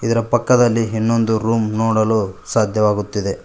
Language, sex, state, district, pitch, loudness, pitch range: Kannada, male, Karnataka, Koppal, 110 Hz, -17 LUFS, 110-115 Hz